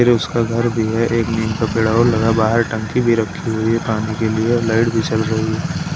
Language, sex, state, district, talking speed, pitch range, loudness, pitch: Hindi, male, Maharashtra, Washim, 230 wpm, 110-115 Hz, -17 LUFS, 115 Hz